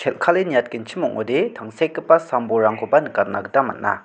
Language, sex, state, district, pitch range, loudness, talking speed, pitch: Garo, male, Meghalaya, South Garo Hills, 110-165 Hz, -20 LUFS, 105 wpm, 120 Hz